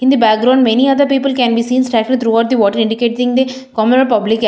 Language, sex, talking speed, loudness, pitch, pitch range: English, female, 240 wpm, -13 LUFS, 245 Hz, 225-260 Hz